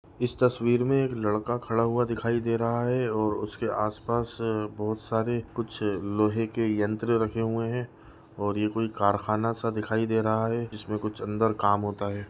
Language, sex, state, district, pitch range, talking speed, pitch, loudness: Hindi, male, Uttar Pradesh, Budaun, 105-115 Hz, 175 wpm, 110 Hz, -28 LUFS